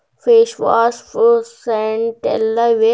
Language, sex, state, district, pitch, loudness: Kannada, female, Karnataka, Bidar, 235 Hz, -15 LUFS